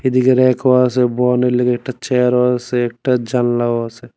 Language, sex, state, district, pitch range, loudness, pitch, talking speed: Bengali, male, Tripura, West Tripura, 120-125 Hz, -15 LUFS, 125 Hz, 175 wpm